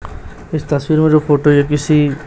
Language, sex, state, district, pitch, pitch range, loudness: Hindi, male, Chhattisgarh, Raipur, 145 Hz, 140-155 Hz, -14 LUFS